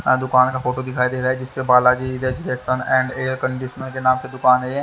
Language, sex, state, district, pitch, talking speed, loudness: Hindi, male, Haryana, Charkhi Dadri, 130 Hz, 250 wpm, -19 LUFS